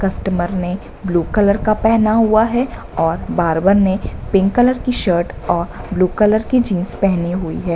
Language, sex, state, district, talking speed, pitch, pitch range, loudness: Hindi, female, Bihar, Bhagalpur, 175 wpm, 195 Hz, 175-220 Hz, -16 LUFS